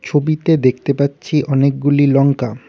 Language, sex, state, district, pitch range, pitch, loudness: Bengali, male, West Bengal, Cooch Behar, 135-145 Hz, 140 Hz, -15 LUFS